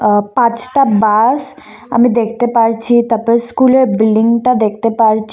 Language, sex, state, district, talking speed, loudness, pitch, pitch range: Bengali, female, Assam, Kamrup Metropolitan, 125 wpm, -12 LUFS, 230 Hz, 220-245 Hz